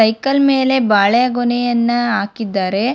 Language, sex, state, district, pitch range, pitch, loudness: Kannada, female, Karnataka, Bangalore, 220-250 Hz, 240 Hz, -15 LUFS